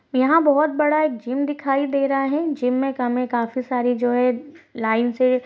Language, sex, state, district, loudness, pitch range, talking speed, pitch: Hindi, female, Chhattisgarh, Sarguja, -20 LUFS, 245-290 Hz, 200 wpm, 260 Hz